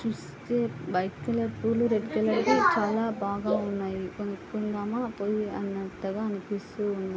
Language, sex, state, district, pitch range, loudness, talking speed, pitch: Telugu, female, Andhra Pradesh, Anantapur, 195-220 Hz, -29 LUFS, 115 wpm, 205 Hz